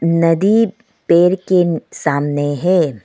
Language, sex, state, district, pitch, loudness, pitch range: Hindi, female, Arunachal Pradesh, Lower Dibang Valley, 170 Hz, -15 LUFS, 150-185 Hz